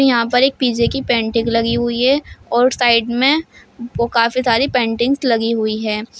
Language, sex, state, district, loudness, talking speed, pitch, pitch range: Hindi, female, Uttar Pradesh, Shamli, -16 LUFS, 175 wpm, 235 Hz, 230-255 Hz